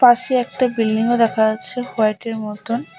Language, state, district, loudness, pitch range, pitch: Bengali, West Bengal, Alipurduar, -19 LUFS, 220-250 Hz, 230 Hz